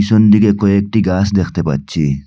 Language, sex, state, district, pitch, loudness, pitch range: Bengali, male, Assam, Hailakandi, 100 Hz, -13 LUFS, 80-105 Hz